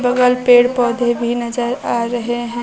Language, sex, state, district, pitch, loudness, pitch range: Hindi, female, Bihar, Kaimur, 240 Hz, -16 LUFS, 240-245 Hz